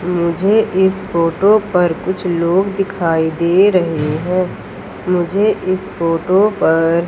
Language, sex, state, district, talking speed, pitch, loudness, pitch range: Hindi, female, Madhya Pradesh, Umaria, 120 wpm, 180 Hz, -15 LUFS, 165-190 Hz